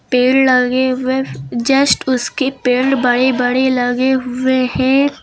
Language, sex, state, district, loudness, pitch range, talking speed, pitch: Hindi, female, Uttar Pradesh, Lucknow, -14 LUFS, 250-265 Hz, 125 wpm, 255 Hz